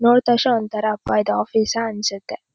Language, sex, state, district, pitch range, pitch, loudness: Kannada, female, Karnataka, Shimoga, 195-235 Hz, 215 Hz, -20 LUFS